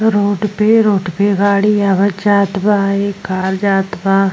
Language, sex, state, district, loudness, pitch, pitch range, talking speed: Bhojpuri, female, Uttar Pradesh, Gorakhpur, -14 LUFS, 200 Hz, 195-205 Hz, 165 wpm